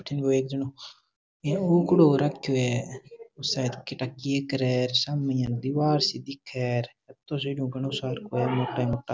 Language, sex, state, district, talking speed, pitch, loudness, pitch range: Marwari, male, Rajasthan, Nagaur, 145 wpm, 135 Hz, -26 LUFS, 130-145 Hz